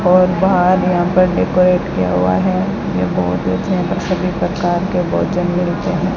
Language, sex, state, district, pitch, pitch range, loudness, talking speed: Hindi, female, Rajasthan, Bikaner, 180 Hz, 175-185 Hz, -15 LUFS, 185 wpm